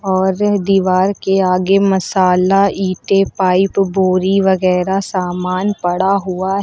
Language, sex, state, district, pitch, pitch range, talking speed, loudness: Hindi, female, Uttar Pradesh, Lucknow, 190 Hz, 185-195 Hz, 120 wpm, -14 LUFS